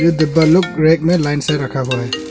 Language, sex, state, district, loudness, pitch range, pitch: Hindi, male, Arunachal Pradesh, Longding, -15 LUFS, 145-165 Hz, 155 Hz